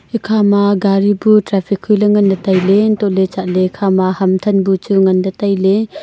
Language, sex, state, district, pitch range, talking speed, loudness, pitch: Wancho, female, Arunachal Pradesh, Longding, 190-210 Hz, 160 wpm, -13 LUFS, 200 Hz